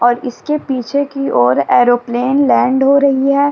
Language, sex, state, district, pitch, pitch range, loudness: Hindi, female, Uttar Pradesh, Jyotiba Phule Nagar, 270 Hz, 245-280 Hz, -13 LUFS